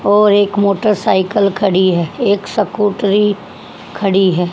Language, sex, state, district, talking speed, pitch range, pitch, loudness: Hindi, female, Haryana, Jhajjar, 120 wpm, 190-205 Hz, 200 Hz, -14 LUFS